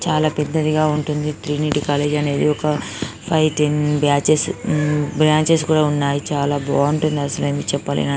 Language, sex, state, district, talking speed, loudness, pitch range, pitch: Telugu, female, Telangana, Karimnagar, 140 wpm, -19 LUFS, 145-155 Hz, 150 Hz